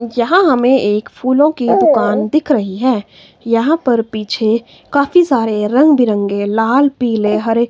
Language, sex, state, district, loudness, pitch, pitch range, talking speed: Hindi, female, Himachal Pradesh, Shimla, -13 LUFS, 235 Hz, 220-280 Hz, 140 wpm